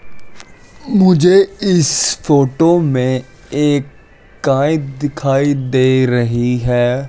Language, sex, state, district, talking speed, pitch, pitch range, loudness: Hindi, male, Chandigarh, Chandigarh, 85 wpm, 140 Hz, 130-165 Hz, -14 LUFS